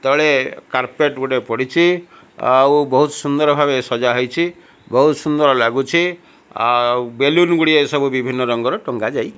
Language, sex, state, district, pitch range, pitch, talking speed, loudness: Odia, male, Odisha, Malkangiri, 130-150 Hz, 140 Hz, 140 wpm, -16 LUFS